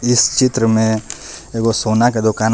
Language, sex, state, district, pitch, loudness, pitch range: Bhojpuri, male, Jharkhand, Palamu, 115 Hz, -15 LUFS, 110-120 Hz